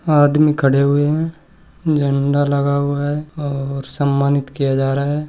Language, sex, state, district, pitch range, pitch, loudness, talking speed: Hindi, male, Rajasthan, Nagaur, 140-150 Hz, 145 Hz, -17 LUFS, 160 wpm